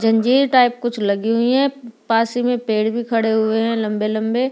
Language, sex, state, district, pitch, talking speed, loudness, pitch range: Hindi, female, Delhi, New Delhi, 230 Hz, 200 wpm, -18 LUFS, 220-245 Hz